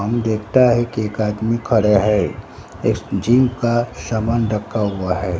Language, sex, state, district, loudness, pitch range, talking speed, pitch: Hindi, male, Bihar, Katihar, -18 LUFS, 105-120 Hz, 165 wpm, 110 Hz